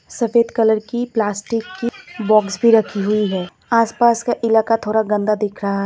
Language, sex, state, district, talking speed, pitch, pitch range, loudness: Hindi, female, Assam, Kamrup Metropolitan, 185 wpm, 220 Hz, 210-230 Hz, -18 LUFS